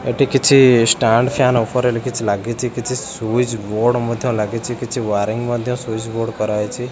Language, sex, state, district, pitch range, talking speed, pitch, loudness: Odia, male, Odisha, Khordha, 110-125 Hz, 155 wpm, 120 Hz, -17 LUFS